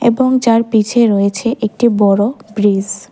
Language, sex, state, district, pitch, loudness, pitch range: Bengali, female, Tripura, West Tripura, 220 Hz, -13 LUFS, 205-235 Hz